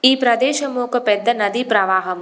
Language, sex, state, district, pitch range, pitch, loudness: Telugu, female, Telangana, Komaram Bheem, 205-250 Hz, 235 Hz, -17 LUFS